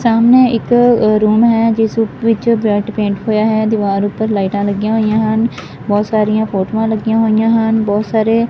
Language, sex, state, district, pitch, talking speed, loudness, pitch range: Punjabi, male, Punjab, Fazilka, 220 Hz, 170 wpm, -13 LUFS, 210-225 Hz